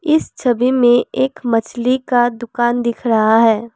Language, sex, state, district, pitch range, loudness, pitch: Hindi, female, Assam, Kamrup Metropolitan, 235-255 Hz, -15 LUFS, 240 Hz